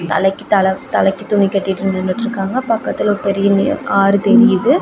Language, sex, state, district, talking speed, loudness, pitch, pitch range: Tamil, female, Tamil Nadu, Namakkal, 160 wpm, -15 LUFS, 195 Hz, 195-220 Hz